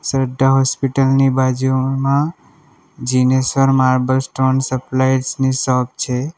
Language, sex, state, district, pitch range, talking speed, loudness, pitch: Gujarati, male, Gujarat, Valsad, 130-135 Hz, 105 wpm, -16 LUFS, 130 Hz